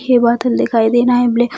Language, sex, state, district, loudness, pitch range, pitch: Hindi, female, Bihar, Jamui, -13 LUFS, 235-245 Hz, 240 Hz